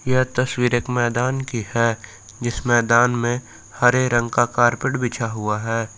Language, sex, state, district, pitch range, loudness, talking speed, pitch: Hindi, male, Jharkhand, Palamu, 115-125 Hz, -20 LUFS, 160 wpm, 120 Hz